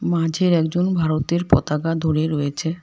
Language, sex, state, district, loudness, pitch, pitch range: Bengali, female, West Bengal, Alipurduar, -20 LUFS, 165 Hz, 155-175 Hz